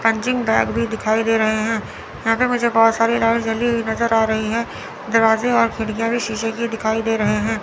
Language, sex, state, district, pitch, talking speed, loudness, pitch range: Hindi, female, Chandigarh, Chandigarh, 225 Hz, 230 wpm, -19 LUFS, 220-230 Hz